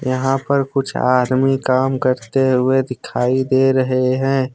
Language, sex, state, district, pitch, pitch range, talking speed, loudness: Hindi, male, Jharkhand, Deoghar, 130 Hz, 130-135 Hz, 145 wpm, -17 LUFS